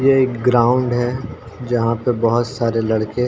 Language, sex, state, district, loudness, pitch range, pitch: Hindi, male, Uttar Pradesh, Ghazipur, -18 LUFS, 115-125 Hz, 120 Hz